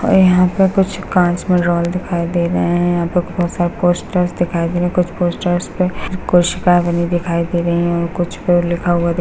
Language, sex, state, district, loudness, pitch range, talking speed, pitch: Hindi, female, Bihar, Darbhanga, -16 LUFS, 170-180 Hz, 230 wpm, 175 Hz